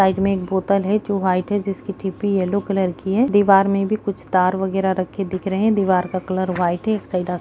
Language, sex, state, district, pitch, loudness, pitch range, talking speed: Kumaoni, female, Uttarakhand, Uttarkashi, 195 Hz, -20 LUFS, 185-200 Hz, 260 wpm